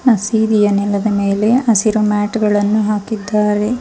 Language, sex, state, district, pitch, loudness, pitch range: Kannada, female, Karnataka, Bangalore, 210 Hz, -15 LUFS, 205-220 Hz